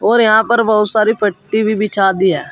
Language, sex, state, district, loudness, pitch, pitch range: Hindi, male, Uttar Pradesh, Saharanpur, -13 LUFS, 215 Hz, 205-220 Hz